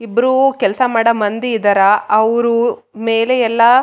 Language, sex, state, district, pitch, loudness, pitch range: Kannada, female, Karnataka, Raichur, 230 Hz, -14 LUFS, 220-245 Hz